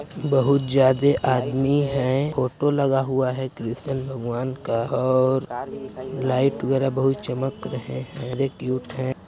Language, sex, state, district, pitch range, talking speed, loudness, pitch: Hindi, male, Chhattisgarh, Sarguja, 130-135 Hz, 115 wpm, -23 LUFS, 130 Hz